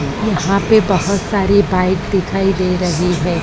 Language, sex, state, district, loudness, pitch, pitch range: Hindi, female, Maharashtra, Mumbai Suburban, -15 LUFS, 190 Hz, 180-200 Hz